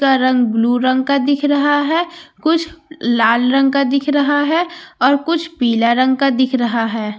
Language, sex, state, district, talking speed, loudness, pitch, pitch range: Hindi, female, Bihar, Katihar, 190 wpm, -15 LUFS, 275 Hz, 245-295 Hz